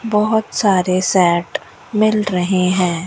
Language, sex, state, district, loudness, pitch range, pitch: Hindi, female, Rajasthan, Bikaner, -16 LUFS, 180-215 Hz, 185 Hz